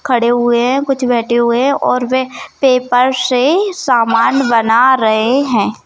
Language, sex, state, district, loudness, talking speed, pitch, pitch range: Hindi, female, Maharashtra, Nagpur, -13 LUFS, 155 wpm, 250 Hz, 235-265 Hz